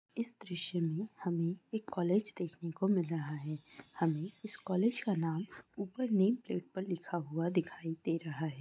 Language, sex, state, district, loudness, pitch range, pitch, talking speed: Hindi, female, West Bengal, North 24 Parganas, -36 LUFS, 165-200 Hz, 175 Hz, 180 wpm